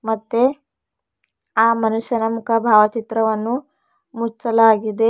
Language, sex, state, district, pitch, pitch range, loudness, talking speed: Kannada, female, Karnataka, Bidar, 230 Hz, 220-235 Hz, -18 LUFS, 70 wpm